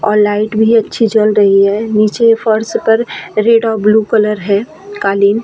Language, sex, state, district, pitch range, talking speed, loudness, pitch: Hindi, female, Bihar, Vaishali, 210-225 Hz, 190 wpm, -12 LUFS, 215 Hz